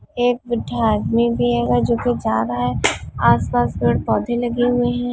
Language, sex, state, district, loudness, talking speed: Hindi, female, Chhattisgarh, Raigarh, -19 LUFS, 175 wpm